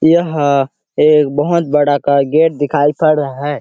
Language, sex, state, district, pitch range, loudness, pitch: Hindi, male, Chhattisgarh, Sarguja, 145-155 Hz, -13 LUFS, 145 Hz